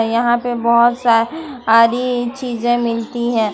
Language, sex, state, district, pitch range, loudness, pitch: Hindi, female, Jharkhand, Ranchi, 230-245 Hz, -16 LUFS, 240 Hz